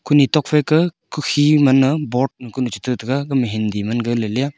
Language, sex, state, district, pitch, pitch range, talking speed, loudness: Wancho, male, Arunachal Pradesh, Longding, 135 Hz, 120-150 Hz, 210 wpm, -18 LUFS